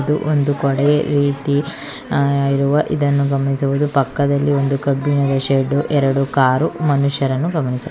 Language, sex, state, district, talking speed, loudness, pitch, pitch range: Kannada, female, Karnataka, Bangalore, 115 wpm, -17 LUFS, 140 Hz, 140-145 Hz